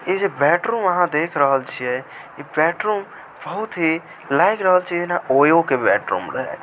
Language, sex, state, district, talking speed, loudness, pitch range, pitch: Maithili, male, Bihar, Samastipur, 155 wpm, -19 LUFS, 145-185 Hz, 175 Hz